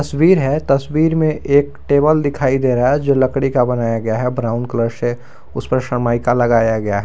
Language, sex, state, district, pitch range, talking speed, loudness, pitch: Hindi, male, Jharkhand, Garhwa, 120-145 Hz, 205 wpm, -16 LUFS, 130 Hz